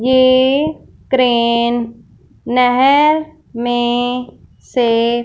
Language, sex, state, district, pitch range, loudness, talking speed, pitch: Hindi, female, Punjab, Fazilka, 240-260 Hz, -14 LUFS, 55 wpm, 245 Hz